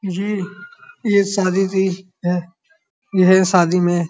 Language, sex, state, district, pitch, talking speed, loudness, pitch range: Hindi, male, Uttar Pradesh, Muzaffarnagar, 190 Hz, 100 wpm, -18 LUFS, 180-205 Hz